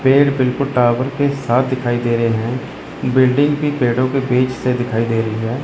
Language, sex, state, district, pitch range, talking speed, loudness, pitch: Hindi, male, Chandigarh, Chandigarh, 120-135 Hz, 200 wpm, -17 LUFS, 125 Hz